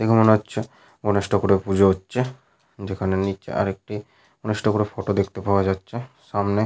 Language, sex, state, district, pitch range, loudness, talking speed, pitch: Bengali, male, Jharkhand, Sahebganj, 95-110 Hz, -22 LUFS, 155 wpm, 100 Hz